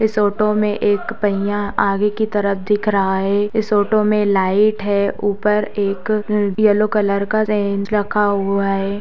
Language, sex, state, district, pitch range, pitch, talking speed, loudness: Hindi, female, Bihar, Sitamarhi, 200-210 Hz, 205 Hz, 165 wpm, -17 LUFS